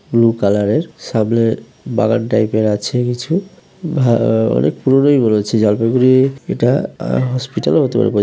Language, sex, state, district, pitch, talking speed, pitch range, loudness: Bengali, male, West Bengal, Jalpaiguri, 120 Hz, 155 wpm, 110-135 Hz, -15 LUFS